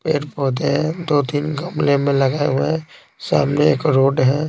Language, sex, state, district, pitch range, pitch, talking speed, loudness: Hindi, male, Bihar, Patna, 140-155 Hz, 145 Hz, 160 wpm, -18 LUFS